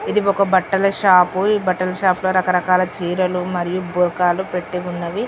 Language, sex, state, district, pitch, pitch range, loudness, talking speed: Telugu, female, Telangana, Karimnagar, 185 Hz, 180-190 Hz, -18 LUFS, 150 wpm